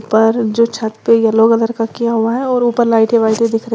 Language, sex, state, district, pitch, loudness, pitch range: Hindi, female, Uttar Pradesh, Lalitpur, 230 Hz, -13 LUFS, 225-235 Hz